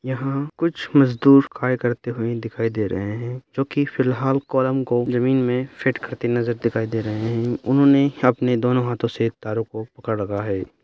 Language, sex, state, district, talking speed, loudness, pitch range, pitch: Hindi, male, Bihar, Madhepura, 195 wpm, -21 LUFS, 115-135 Hz, 125 Hz